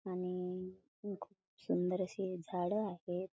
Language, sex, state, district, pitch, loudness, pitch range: Marathi, female, Maharashtra, Chandrapur, 185 Hz, -40 LUFS, 180-190 Hz